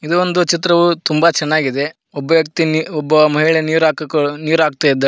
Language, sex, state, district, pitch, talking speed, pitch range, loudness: Kannada, male, Karnataka, Koppal, 155 Hz, 165 wpm, 150-165 Hz, -14 LUFS